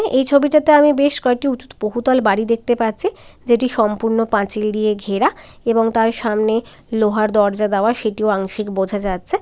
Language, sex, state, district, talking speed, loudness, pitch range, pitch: Bengali, female, West Bengal, Dakshin Dinajpur, 165 wpm, -17 LUFS, 210-250 Hz, 225 Hz